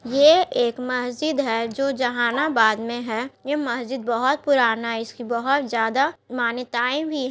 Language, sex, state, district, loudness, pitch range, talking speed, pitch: Hindi, female, Bihar, Gaya, -22 LUFS, 235-275 Hz, 150 wpm, 245 Hz